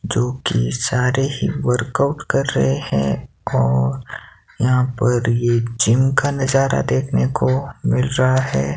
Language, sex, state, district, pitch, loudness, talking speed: Hindi, male, Himachal Pradesh, Shimla, 125 Hz, -18 LUFS, 135 wpm